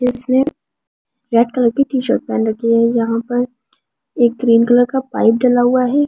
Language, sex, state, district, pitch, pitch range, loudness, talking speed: Hindi, female, Delhi, New Delhi, 245 Hz, 235-255 Hz, -15 LUFS, 180 wpm